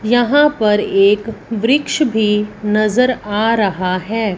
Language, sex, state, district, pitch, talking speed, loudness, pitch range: Hindi, female, Punjab, Fazilka, 215 Hz, 125 wpm, -15 LUFS, 210-245 Hz